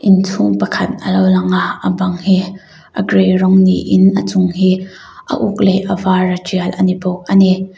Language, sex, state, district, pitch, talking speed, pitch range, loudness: Mizo, female, Mizoram, Aizawl, 185 Hz, 195 wpm, 175-190 Hz, -13 LUFS